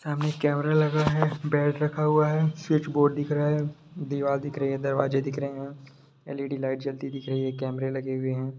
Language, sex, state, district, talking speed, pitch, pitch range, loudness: Hindi, male, Bihar, Darbhanga, 215 wpm, 145 Hz, 135-150 Hz, -27 LUFS